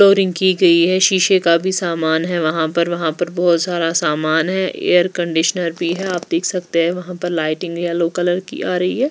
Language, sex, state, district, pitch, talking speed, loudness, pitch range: Hindi, female, Bihar, West Champaran, 175 Hz, 225 wpm, -17 LUFS, 170-185 Hz